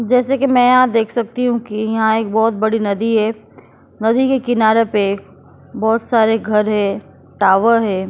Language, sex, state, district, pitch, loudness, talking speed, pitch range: Hindi, female, Goa, North and South Goa, 220 Hz, -15 LUFS, 180 wpm, 210-235 Hz